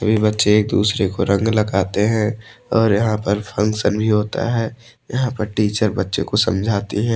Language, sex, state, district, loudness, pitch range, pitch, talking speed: Hindi, male, Odisha, Malkangiri, -18 LUFS, 105-110 Hz, 105 Hz, 185 wpm